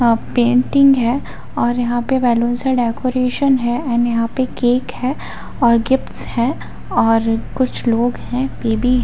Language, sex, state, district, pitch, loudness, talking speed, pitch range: Hindi, female, Chhattisgarh, Bilaspur, 245 Hz, -17 LUFS, 145 wpm, 235-255 Hz